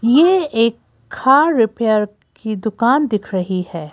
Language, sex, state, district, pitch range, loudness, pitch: Hindi, female, Madhya Pradesh, Bhopal, 210-265 Hz, -16 LUFS, 225 Hz